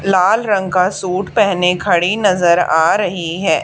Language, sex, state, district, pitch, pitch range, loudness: Hindi, female, Haryana, Charkhi Dadri, 185 Hz, 175-200 Hz, -14 LUFS